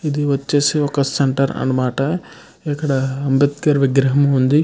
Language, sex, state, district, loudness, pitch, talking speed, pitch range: Telugu, male, Andhra Pradesh, Krishna, -17 LUFS, 140 Hz, 115 wpm, 135-145 Hz